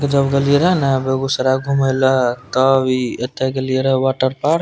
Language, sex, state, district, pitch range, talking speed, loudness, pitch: Maithili, male, Bihar, Purnia, 130-140 Hz, 195 wpm, -16 LUFS, 130 Hz